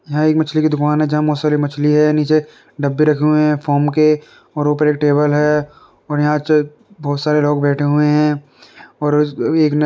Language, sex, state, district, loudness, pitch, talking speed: Hindi, male, Uttar Pradesh, Varanasi, -15 LUFS, 150 Hz, 205 wpm